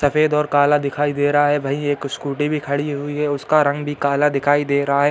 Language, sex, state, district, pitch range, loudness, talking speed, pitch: Hindi, male, Uttar Pradesh, Hamirpur, 140-145 Hz, -19 LUFS, 260 wpm, 145 Hz